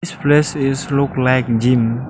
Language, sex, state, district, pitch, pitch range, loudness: English, male, Arunachal Pradesh, Lower Dibang Valley, 135 Hz, 125-145 Hz, -16 LUFS